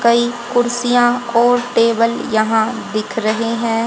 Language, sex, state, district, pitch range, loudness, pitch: Hindi, female, Haryana, Jhajjar, 230-240 Hz, -16 LUFS, 235 Hz